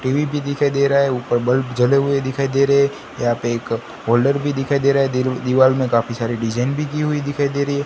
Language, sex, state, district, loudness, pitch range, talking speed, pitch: Hindi, male, Gujarat, Gandhinagar, -18 LUFS, 125-140 Hz, 275 wpm, 135 Hz